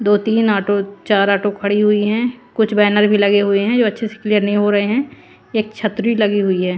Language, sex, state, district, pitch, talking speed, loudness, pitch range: Hindi, female, Haryana, Jhajjar, 210 Hz, 240 wpm, -16 LUFS, 205-220 Hz